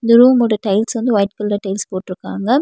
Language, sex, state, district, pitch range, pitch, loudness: Tamil, female, Tamil Nadu, Nilgiris, 195-235 Hz, 210 Hz, -16 LUFS